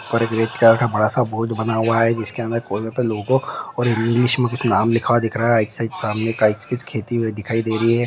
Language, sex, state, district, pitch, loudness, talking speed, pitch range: Hindi, male, Bihar, Madhepura, 115 Hz, -19 LUFS, 185 wpm, 110-120 Hz